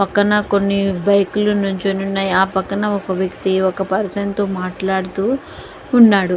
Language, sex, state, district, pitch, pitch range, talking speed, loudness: Telugu, female, Andhra Pradesh, Guntur, 195 Hz, 190-205 Hz, 130 wpm, -17 LUFS